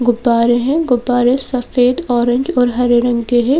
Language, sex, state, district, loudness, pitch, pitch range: Hindi, female, Madhya Pradesh, Bhopal, -14 LUFS, 245 Hz, 240-255 Hz